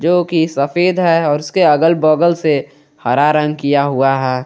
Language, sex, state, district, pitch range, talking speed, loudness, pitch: Hindi, male, Jharkhand, Garhwa, 140-170 Hz, 190 wpm, -14 LUFS, 150 Hz